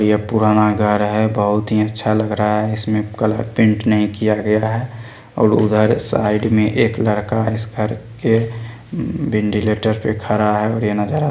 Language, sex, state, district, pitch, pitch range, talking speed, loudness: Maithili, male, Bihar, Supaul, 110 Hz, 105-115 Hz, 175 wpm, -17 LUFS